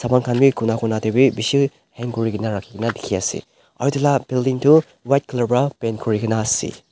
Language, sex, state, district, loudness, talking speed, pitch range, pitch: Nagamese, male, Nagaland, Dimapur, -19 LUFS, 190 wpm, 110-135 Hz, 120 Hz